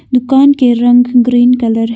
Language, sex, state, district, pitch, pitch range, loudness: Hindi, female, Arunachal Pradesh, Longding, 245 Hz, 240-250 Hz, -9 LUFS